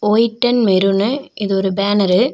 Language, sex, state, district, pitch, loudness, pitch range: Tamil, female, Tamil Nadu, Nilgiris, 205 Hz, -16 LUFS, 195-245 Hz